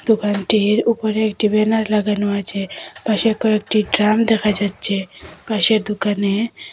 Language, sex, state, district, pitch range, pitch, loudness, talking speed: Bengali, female, Assam, Hailakandi, 205-220 Hz, 215 Hz, -18 LUFS, 115 wpm